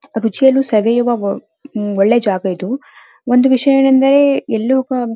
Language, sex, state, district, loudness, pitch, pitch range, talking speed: Kannada, female, Karnataka, Dharwad, -14 LUFS, 245 Hz, 220-270 Hz, 130 wpm